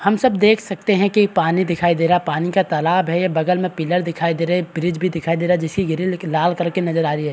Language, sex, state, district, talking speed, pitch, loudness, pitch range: Hindi, male, Bihar, Araria, 310 wpm, 175 Hz, -18 LUFS, 165-185 Hz